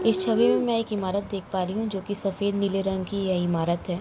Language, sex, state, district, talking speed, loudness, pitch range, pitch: Hindi, female, Uttar Pradesh, Jalaun, 285 wpm, -26 LUFS, 185-205 Hz, 195 Hz